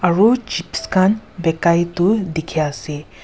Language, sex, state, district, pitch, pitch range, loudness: Nagamese, female, Nagaland, Kohima, 175 Hz, 160-200 Hz, -18 LUFS